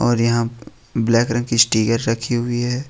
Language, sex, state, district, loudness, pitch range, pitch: Hindi, male, Jharkhand, Ranchi, -19 LUFS, 115-120 Hz, 115 Hz